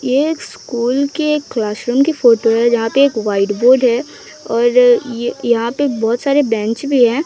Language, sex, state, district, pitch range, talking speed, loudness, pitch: Hindi, female, Odisha, Sambalpur, 230-280 Hz, 175 wpm, -15 LUFS, 245 Hz